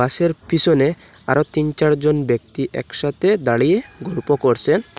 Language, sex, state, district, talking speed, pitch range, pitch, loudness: Bengali, male, Assam, Hailakandi, 110 wpm, 135-165 Hz, 150 Hz, -18 LUFS